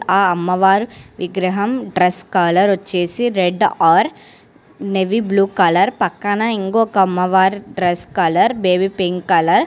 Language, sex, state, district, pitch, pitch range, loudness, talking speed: Telugu, female, Telangana, Hyderabad, 190 Hz, 180-205 Hz, -16 LUFS, 130 wpm